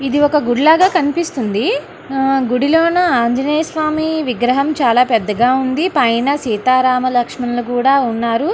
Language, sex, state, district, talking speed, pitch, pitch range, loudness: Telugu, female, Andhra Pradesh, Anantapur, 110 wpm, 265 Hz, 245-305 Hz, -15 LUFS